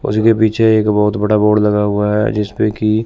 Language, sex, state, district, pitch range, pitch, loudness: Hindi, male, Chandigarh, Chandigarh, 105-110 Hz, 105 Hz, -14 LUFS